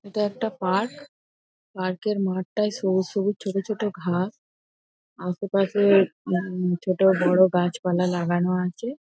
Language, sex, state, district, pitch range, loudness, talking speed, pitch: Bengali, female, West Bengal, North 24 Parganas, 180-205 Hz, -24 LUFS, 120 wpm, 190 Hz